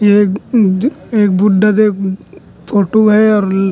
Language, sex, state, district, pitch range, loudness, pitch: Chhattisgarhi, male, Chhattisgarh, Rajnandgaon, 195-215 Hz, -12 LUFS, 205 Hz